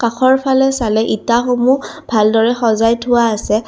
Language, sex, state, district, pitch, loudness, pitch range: Assamese, female, Assam, Kamrup Metropolitan, 235 Hz, -14 LUFS, 225-255 Hz